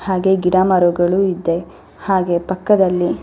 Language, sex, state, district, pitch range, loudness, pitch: Kannada, female, Karnataka, Bellary, 175-190 Hz, -16 LUFS, 185 Hz